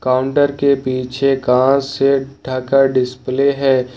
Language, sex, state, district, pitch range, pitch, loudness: Hindi, male, Jharkhand, Ranchi, 130-140 Hz, 135 Hz, -16 LUFS